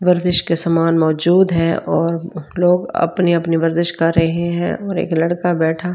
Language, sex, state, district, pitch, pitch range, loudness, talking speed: Hindi, female, Delhi, New Delhi, 170 Hz, 165-175 Hz, -16 LUFS, 170 wpm